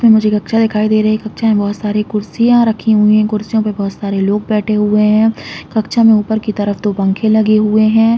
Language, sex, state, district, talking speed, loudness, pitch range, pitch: Hindi, female, Chhattisgarh, Raigarh, 235 wpm, -13 LUFS, 210-220 Hz, 215 Hz